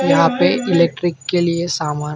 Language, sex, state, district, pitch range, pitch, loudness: Hindi, male, Maharashtra, Gondia, 150-175 Hz, 170 Hz, -17 LUFS